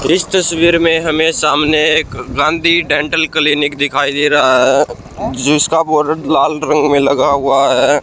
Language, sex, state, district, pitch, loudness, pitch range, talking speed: Hindi, male, Haryana, Rohtak, 150 Hz, -12 LUFS, 145-160 Hz, 155 wpm